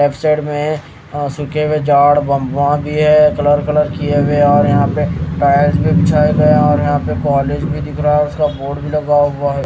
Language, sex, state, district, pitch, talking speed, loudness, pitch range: Hindi, male, Haryana, Rohtak, 145 Hz, 210 wpm, -14 LUFS, 145-150 Hz